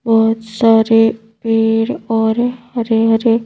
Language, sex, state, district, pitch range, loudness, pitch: Hindi, female, Madhya Pradesh, Bhopal, 225-230 Hz, -14 LUFS, 225 Hz